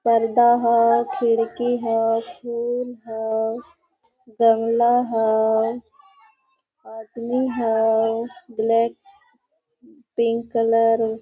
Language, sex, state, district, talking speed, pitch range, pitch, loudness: Hindi, female, Jharkhand, Sahebganj, 75 wpm, 225-245 Hz, 230 Hz, -20 LUFS